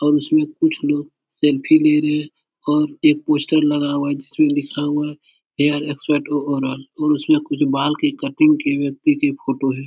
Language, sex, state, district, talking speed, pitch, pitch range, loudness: Hindi, male, Uttar Pradesh, Etah, 200 wpm, 150 Hz, 145-170 Hz, -18 LUFS